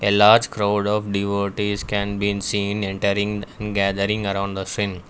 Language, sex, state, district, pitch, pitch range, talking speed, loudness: English, male, Karnataka, Bangalore, 100 Hz, 100-105 Hz, 165 wpm, -21 LUFS